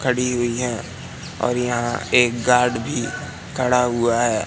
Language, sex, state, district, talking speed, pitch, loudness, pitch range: Hindi, male, Madhya Pradesh, Katni, 150 wpm, 120 Hz, -20 LUFS, 120-125 Hz